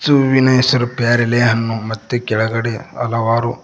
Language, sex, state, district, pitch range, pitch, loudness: Kannada, male, Karnataka, Koppal, 115-125 Hz, 120 Hz, -16 LUFS